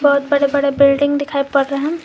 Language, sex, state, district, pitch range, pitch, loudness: Hindi, female, Jharkhand, Garhwa, 280-285 Hz, 280 Hz, -15 LUFS